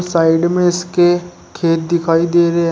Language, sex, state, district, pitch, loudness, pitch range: Hindi, male, Uttar Pradesh, Shamli, 170 Hz, -14 LUFS, 165-175 Hz